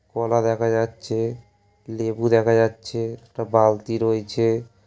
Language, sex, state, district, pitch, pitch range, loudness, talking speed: Bengali, male, West Bengal, Paschim Medinipur, 115 Hz, 110-115 Hz, -22 LUFS, 110 wpm